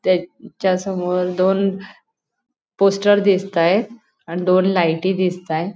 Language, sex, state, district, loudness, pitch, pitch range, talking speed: Marathi, female, Goa, North and South Goa, -18 LUFS, 185 Hz, 180-195 Hz, 85 wpm